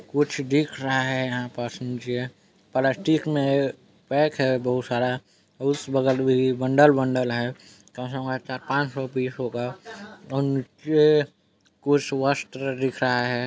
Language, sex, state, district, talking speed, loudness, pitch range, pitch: Hindi, male, Chhattisgarh, Balrampur, 140 wpm, -24 LUFS, 125-140 Hz, 130 Hz